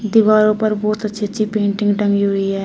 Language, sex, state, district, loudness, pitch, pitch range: Hindi, female, Uttar Pradesh, Shamli, -16 LUFS, 210 Hz, 200-215 Hz